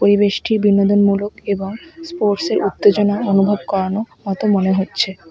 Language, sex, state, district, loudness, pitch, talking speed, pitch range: Bengali, female, West Bengal, Alipurduar, -17 LUFS, 205 Hz, 115 wpm, 195-210 Hz